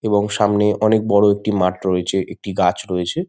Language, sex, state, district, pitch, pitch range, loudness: Bengali, male, West Bengal, Malda, 100 Hz, 95-105 Hz, -18 LUFS